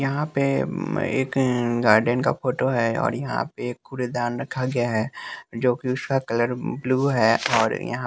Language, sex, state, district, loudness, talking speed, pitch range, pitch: Hindi, male, Bihar, West Champaran, -23 LUFS, 165 wpm, 120-135 Hz, 125 Hz